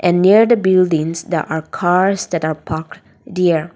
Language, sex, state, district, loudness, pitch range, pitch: English, female, Nagaland, Dimapur, -16 LUFS, 160-185 Hz, 175 Hz